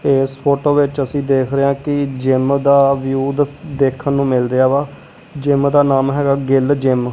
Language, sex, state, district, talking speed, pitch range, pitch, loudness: Punjabi, male, Punjab, Kapurthala, 200 wpm, 135-140 Hz, 140 Hz, -15 LUFS